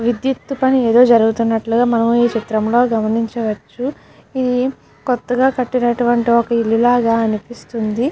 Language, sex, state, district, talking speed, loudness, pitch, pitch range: Telugu, female, Andhra Pradesh, Krishna, 105 wpm, -16 LUFS, 240 Hz, 230-250 Hz